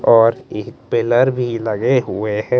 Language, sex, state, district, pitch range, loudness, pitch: Hindi, male, Chandigarh, Chandigarh, 110-125 Hz, -17 LUFS, 115 Hz